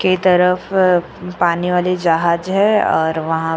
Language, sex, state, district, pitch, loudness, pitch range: Hindi, female, Uttar Pradesh, Jyotiba Phule Nagar, 180 Hz, -15 LUFS, 170-185 Hz